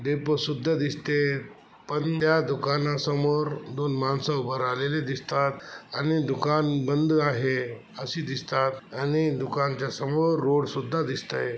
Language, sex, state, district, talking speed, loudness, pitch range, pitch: Marathi, male, Maharashtra, Chandrapur, 125 wpm, -26 LUFS, 135-150 Hz, 145 Hz